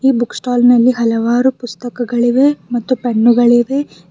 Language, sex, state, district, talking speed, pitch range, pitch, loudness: Kannada, female, Karnataka, Bidar, 100 wpm, 240-255 Hz, 245 Hz, -13 LUFS